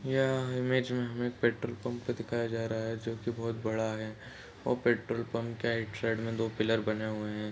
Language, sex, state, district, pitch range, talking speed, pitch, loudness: Hindi, male, Chhattisgarh, Kabirdham, 110-120 Hz, 215 wpm, 115 Hz, -33 LUFS